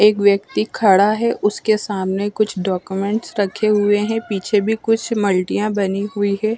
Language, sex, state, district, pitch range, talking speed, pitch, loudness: Hindi, female, Chandigarh, Chandigarh, 195-215 Hz, 175 wpm, 205 Hz, -18 LUFS